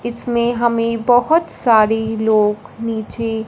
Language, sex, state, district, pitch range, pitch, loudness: Hindi, female, Punjab, Fazilka, 220-240 Hz, 230 Hz, -16 LUFS